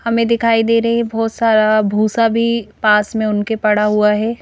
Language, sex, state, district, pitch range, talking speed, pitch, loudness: Hindi, female, Madhya Pradesh, Bhopal, 210-230 Hz, 205 wpm, 225 Hz, -15 LUFS